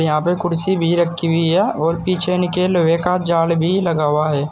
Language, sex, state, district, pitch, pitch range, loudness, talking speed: Hindi, male, Uttar Pradesh, Saharanpur, 170 Hz, 165-180 Hz, -17 LUFS, 225 wpm